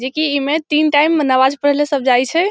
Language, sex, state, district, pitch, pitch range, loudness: Maithili, female, Bihar, Samastipur, 290 Hz, 265-305 Hz, -15 LUFS